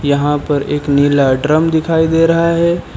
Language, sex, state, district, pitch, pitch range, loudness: Hindi, male, Uttar Pradesh, Lucknow, 150 Hz, 145-165 Hz, -13 LUFS